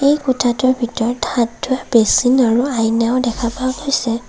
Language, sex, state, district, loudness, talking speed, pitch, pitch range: Assamese, female, Assam, Kamrup Metropolitan, -16 LUFS, 155 wpm, 245 Hz, 230-260 Hz